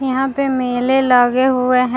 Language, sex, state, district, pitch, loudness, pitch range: Hindi, female, Bihar, Vaishali, 255 Hz, -15 LUFS, 250-265 Hz